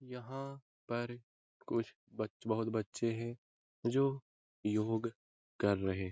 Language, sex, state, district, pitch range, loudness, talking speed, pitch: Hindi, male, Bihar, Lakhisarai, 110-125 Hz, -38 LUFS, 120 wpm, 115 Hz